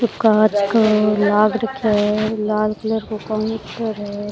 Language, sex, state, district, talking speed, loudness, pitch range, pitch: Rajasthani, female, Rajasthan, Churu, 155 wpm, -18 LUFS, 210-220 Hz, 215 Hz